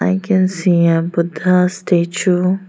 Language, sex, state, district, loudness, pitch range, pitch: English, female, Arunachal Pradesh, Lower Dibang Valley, -15 LUFS, 170-185 Hz, 180 Hz